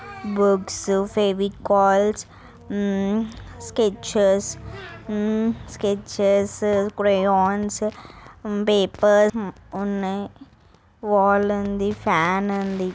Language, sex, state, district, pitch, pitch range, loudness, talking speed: Telugu, female, Andhra Pradesh, Guntur, 200 Hz, 195-210 Hz, -21 LUFS, 70 wpm